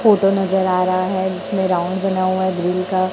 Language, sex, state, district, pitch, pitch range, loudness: Hindi, male, Chhattisgarh, Raipur, 185 Hz, 185-190 Hz, -18 LUFS